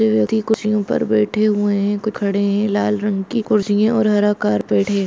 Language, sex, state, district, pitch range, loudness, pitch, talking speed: Hindi, female, Jharkhand, Jamtara, 200-215 Hz, -18 LUFS, 205 Hz, 215 wpm